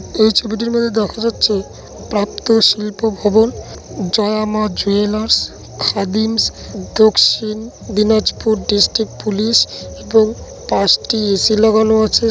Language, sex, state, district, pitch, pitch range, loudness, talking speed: Bengali, male, West Bengal, Dakshin Dinajpur, 215 Hz, 210-220 Hz, -15 LUFS, 100 wpm